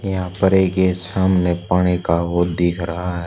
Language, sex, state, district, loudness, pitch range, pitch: Hindi, male, Haryana, Charkhi Dadri, -18 LUFS, 85-95 Hz, 90 Hz